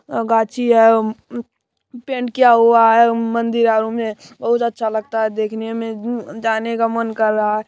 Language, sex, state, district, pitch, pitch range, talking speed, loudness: Maithili, male, Bihar, Supaul, 230 Hz, 220-235 Hz, 165 wpm, -17 LUFS